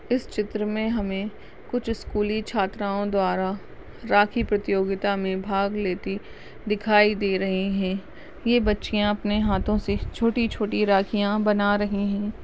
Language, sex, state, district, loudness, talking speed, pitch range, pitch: Hindi, female, Uttar Pradesh, Budaun, -24 LUFS, 130 wpm, 195-215 Hz, 205 Hz